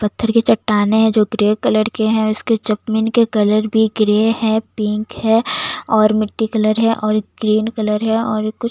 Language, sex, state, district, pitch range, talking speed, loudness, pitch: Hindi, female, Chhattisgarh, Jashpur, 215-225 Hz, 200 wpm, -16 LUFS, 220 Hz